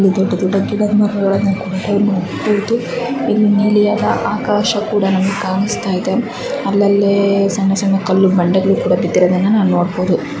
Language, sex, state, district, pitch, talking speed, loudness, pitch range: Kannada, female, Karnataka, Dharwad, 200 Hz, 140 wpm, -15 LUFS, 190-210 Hz